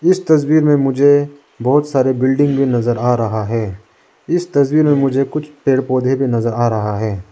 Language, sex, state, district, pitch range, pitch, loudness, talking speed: Hindi, male, Arunachal Pradesh, Lower Dibang Valley, 120-145 Hz, 135 Hz, -15 LUFS, 195 wpm